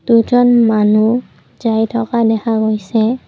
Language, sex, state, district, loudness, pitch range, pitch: Assamese, female, Assam, Kamrup Metropolitan, -14 LUFS, 215-235 Hz, 225 Hz